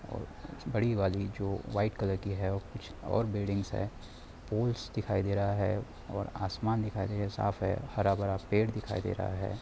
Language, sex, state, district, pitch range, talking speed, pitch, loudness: Hindi, male, Chhattisgarh, Rajnandgaon, 95-110 Hz, 185 wpm, 100 Hz, -33 LUFS